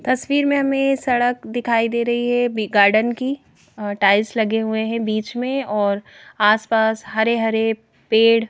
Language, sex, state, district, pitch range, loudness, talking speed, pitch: Hindi, female, Madhya Pradesh, Bhopal, 215-245 Hz, -19 LUFS, 150 wpm, 225 Hz